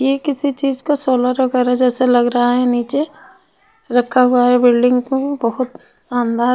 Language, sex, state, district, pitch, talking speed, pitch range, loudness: Hindi, female, Bihar, Patna, 255 Hz, 185 wpm, 245-275 Hz, -16 LUFS